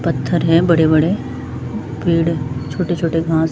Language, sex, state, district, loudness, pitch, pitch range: Hindi, female, Jharkhand, Sahebganj, -17 LUFS, 160 Hz, 130-165 Hz